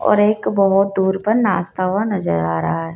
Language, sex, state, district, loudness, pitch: Hindi, female, Madhya Pradesh, Dhar, -17 LUFS, 195 Hz